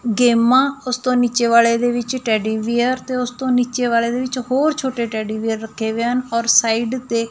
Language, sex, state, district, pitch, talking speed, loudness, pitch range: Punjabi, female, Punjab, Fazilka, 240 Hz, 195 wpm, -18 LUFS, 230-255 Hz